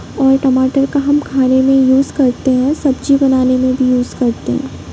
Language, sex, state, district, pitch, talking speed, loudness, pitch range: Hindi, female, Bihar, Sitamarhi, 265 Hz, 195 wpm, -13 LUFS, 255-275 Hz